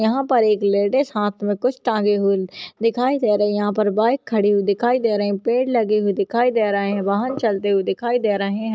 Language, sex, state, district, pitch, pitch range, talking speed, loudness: Hindi, female, Maharashtra, Nagpur, 210 Hz, 200-235 Hz, 245 wpm, -19 LUFS